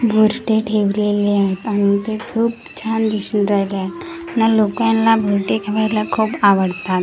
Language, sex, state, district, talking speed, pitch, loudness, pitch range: Marathi, female, Maharashtra, Gondia, 155 wpm, 215 Hz, -17 LUFS, 200-225 Hz